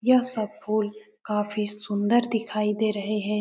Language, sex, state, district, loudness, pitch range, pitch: Hindi, male, Bihar, Jamui, -26 LUFS, 210-220 Hz, 215 Hz